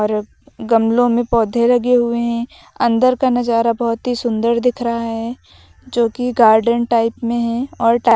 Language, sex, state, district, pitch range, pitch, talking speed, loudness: Hindi, female, Uttar Pradesh, Lucknow, 230-245 Hz, 235 Hz, 170 wpm, -16 LUFS